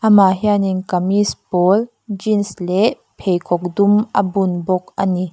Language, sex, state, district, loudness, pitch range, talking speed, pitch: Mizo, female, Mizoram, Aizawl, -17 LUFS, 185-205 Hz, 145 wpm, 195 Hz